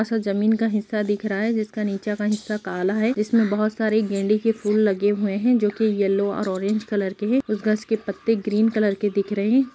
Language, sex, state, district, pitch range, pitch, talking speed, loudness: Hindi, female, Jharkhand, Sahebganj, 205-220 Hz, 210 Hz, 245 wpm, -22 LUFS